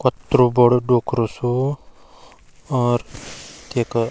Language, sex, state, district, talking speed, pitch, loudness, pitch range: Garhwali, male, Uttarakhand, Uttarkashi, 100 wpm, 125 Hz, -19 LUFS, 120-125 Hz